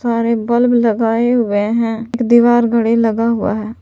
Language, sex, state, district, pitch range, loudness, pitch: Hindi, female, Jharkhand, Palamu, 225-235 Hz, -14 LUFS, 230 Hz